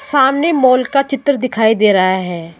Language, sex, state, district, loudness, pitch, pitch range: Hindi, female, Rajasthan, Jaipur, -13 LUFS, 255 Hz, 195-275 Hz